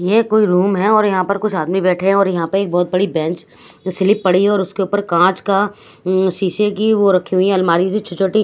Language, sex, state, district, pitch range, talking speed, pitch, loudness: Hindi, female, Haryana, Rohtak, 185-205 Hz, 265 wpm, 190 Hz, -15 LUFS